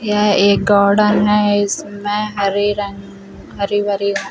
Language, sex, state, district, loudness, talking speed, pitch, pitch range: Hindi, female, Chhattisgarh, Rajnandgaon, -15 LUFS, 165 wpm, 205 Hz, 200-205 Hz